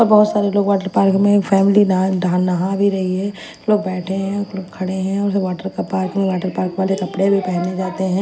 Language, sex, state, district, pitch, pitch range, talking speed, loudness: Hindi, female, Chandigarh, Chandigarh, 190 Hz, 185-200 Hz, 225 wpm, -18 LUFS